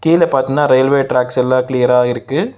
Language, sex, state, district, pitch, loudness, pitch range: Tamil, male, Tamil Nadu, Chennai, 130 Hz, -14 LUFS, 125-140 Hz